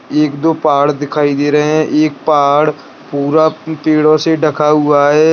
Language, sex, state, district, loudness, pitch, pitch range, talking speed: Hindi, male, Bihar, Bhagalpur, -12 LUFS, 150 Hz, 145-155 Hz, 170 wpm